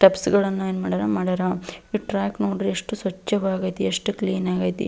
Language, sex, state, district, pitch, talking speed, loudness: Kannada, female, Karnataka, Belgaum, 185 Hz, 160 wpm, -24 LUFS